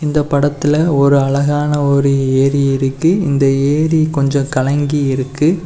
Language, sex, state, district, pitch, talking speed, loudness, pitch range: Tamil, male, Tamil Nadu, Kanyakumari, 140 Hz, 125 wpm, -14 LUFS, 135-150 Hz